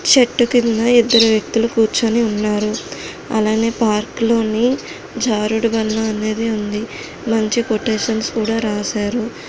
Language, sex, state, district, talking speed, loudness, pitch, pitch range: Telugu, female, Andhra Pradesh, Srikakulam, 105 wpm, -17 LUFS, 225 Hz, 215-230 Hz